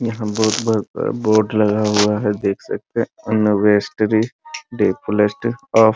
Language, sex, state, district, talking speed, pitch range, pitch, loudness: Hindi, male, Bihar, Muzaffarpur, 110 wpm, 105-110 Hz, 110 Hz, -18 LUFS